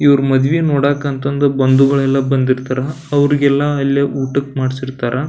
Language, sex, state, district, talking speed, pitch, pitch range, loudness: Kannada, male, Karnataka, Belgaum, 115 wpm, 140 Hz, 135-140 Hz, -15 LUFS